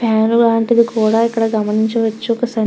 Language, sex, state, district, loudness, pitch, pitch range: Telugu, female, Andhra Pradesh, Krishna, -15 LUFS, 225 Hz, 220-230 Hz